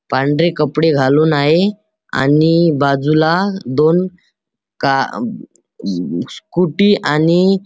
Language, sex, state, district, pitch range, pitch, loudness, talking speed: Marathi, male, Maharashtra, Chandrapur, 150-180 Hz, 160 Hz, -15 LUFS, 80 wpm